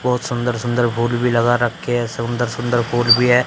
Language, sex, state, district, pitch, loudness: Hindi, male, Haryana, Charkhi Dadri, 120 Hz, -18 LUFS